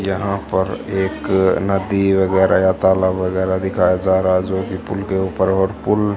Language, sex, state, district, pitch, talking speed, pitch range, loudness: Hindi, female, Haryana, Charkhi Dadri, 95 Hz, 175 wpm, 95-100 Hz, -17 LUFS